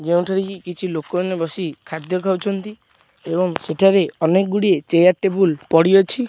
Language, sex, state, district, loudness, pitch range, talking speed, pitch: Odia, male, Odisha, Khordha, -18 LUFS, 170-195 Hz, 145 wpm, 185 Hz